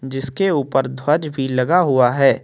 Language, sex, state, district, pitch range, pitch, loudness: Hindi, male, Chhattisgarh, Kabirdham, 130-150 Hz, 135 Hz, -17 LUFS